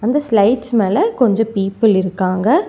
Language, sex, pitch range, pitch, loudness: Tamil, female, 195-240 Hz, 220 Hz, -15 LUFS